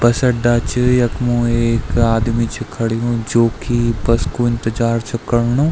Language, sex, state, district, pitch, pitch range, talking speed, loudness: Garhwali, male, Uttarakhand, Tehri Garhwal, 115 Hz, 115-120 Hz, 155 wpm, -17 LUFS